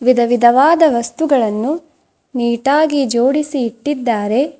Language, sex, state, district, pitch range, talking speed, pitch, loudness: Kannada, female, Karnataka, Bidar, 235-300 Hz, 65 wpm, 265 Hz, -15 LUFS